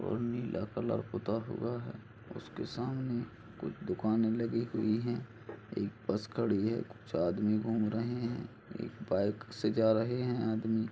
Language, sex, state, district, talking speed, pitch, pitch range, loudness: Hindi, male, Chhattisgarh, Kabirdham, 155 wpm, 115 Hz, 110-120 Hz, -35 LUFS